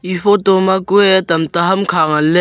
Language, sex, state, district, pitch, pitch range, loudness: Wancho, male, Arunachal Pradesh, Longding, 185 Hz, 170-190 Hz, -13 LUFS